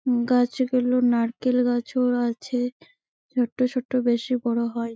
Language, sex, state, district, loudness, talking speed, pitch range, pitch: Bengali, female, West Bengal, Malda, -24 LUFS, 145 wpm, 240-250 Hz, 245 Hz